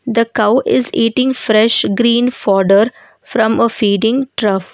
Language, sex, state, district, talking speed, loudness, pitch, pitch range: English, female, Karnataka, Bangalore, 140 wpm, -13 LUFS, 230 Hz, 215-250 Hz